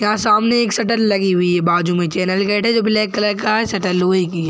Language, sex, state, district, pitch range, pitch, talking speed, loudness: Hindi, male, Chhattisgarh, Bilaspur, 180-215 Hz, 205 Hz, 280 wpm, -16 LUFS